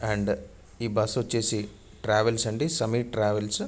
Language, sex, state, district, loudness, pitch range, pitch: Telugu, male, Andhra Pradesh, Anantapur, -27 LUFS, 105-115 Hz, 110 Hz